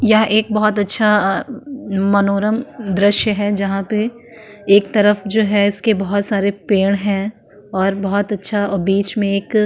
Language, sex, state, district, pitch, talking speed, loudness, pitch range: Hindi, female, Uttarakhand, Tehri Garhwal, 205 Hz, 160 wpm, -16 LUFS, 200-215 Hz